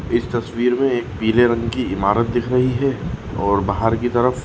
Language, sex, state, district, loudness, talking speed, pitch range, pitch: Hindi, male, Maharashtra, Nagpur, -19 LUFS, 200 wpm, 110-125 Hz, 120 Hz